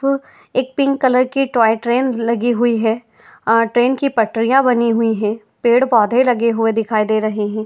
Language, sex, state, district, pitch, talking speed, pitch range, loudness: Hindi, female, Uttar Pradesh, Etah, 235 Hz, 195 wpm, 225-255 Hz, -16 LUFS